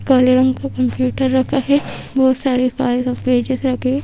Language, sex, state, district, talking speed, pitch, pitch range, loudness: Hindi, female, Madhya Pradesh, Bhopal, 180 wpm, 260 Hz, 250-265 Hz, -17 LUFS